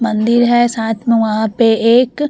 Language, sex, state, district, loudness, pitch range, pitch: Hindi, female, Bihar, Vaishali, -13 LUFS, 225-240 Hz, 230 Hz